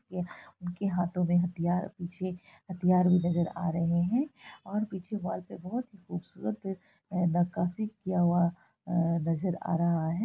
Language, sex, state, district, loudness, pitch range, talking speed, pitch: Hindi, female, Bihar, Araria, -31 LUFS, 170-190 Hz, 150 wpm, 180 Hz